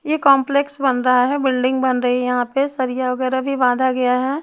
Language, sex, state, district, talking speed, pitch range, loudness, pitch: Hindi, female, Chhattisgarh, Raipur, 230 wpm, 250-275 Hz, -18 LUFS, 260 Hz